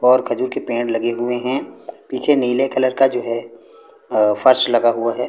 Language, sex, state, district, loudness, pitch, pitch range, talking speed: Hindi, male, Punjab, Pathankot, -18 LUFS, 125 Hz, 115-130 Hz, 205 wpm